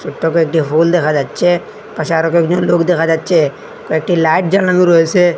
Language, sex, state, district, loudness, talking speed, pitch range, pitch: Bengali, male, Assam, Hailakandi, -13 LUFS, 165 wpm, 160-175 Hz, 170 Hz